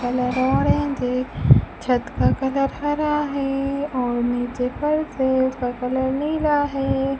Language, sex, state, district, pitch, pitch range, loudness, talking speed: Hindi, female, Rajasthan, Bikaner, 265 Hz, 250-290 Hz, -21 LUFS, 135 wpm